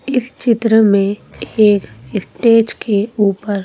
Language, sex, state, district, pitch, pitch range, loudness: Hindi, female, Madhya Pradesh, Bhopal, 210 Hz, 200-230 Hz, -14 LUFS